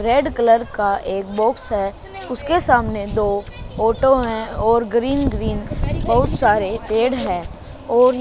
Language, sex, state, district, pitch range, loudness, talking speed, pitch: Hindi, male, Haryana, Charkhi Dadri, 215-255 Hz, -19 LUFS, 140 wpm, 230 Hz